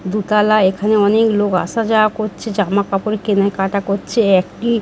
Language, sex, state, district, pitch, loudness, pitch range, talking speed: Bengali, female, West Bengal, Dakshin Dinajpur, 210 Hz, -16 LUFS, 200-215 Hz, 135 wpm